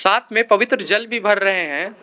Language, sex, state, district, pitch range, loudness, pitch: Hindi, male, Arunachal Pradesh, Lower Dibang Valley, 195-230 Hz, -17 LUFS, 210 Hz